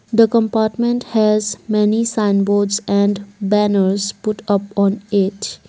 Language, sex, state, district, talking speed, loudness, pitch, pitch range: English, female, Assam, Kamrup Metropolitan, 115 wpm, -17 LUFS, 210 Hz, 200-220 Hz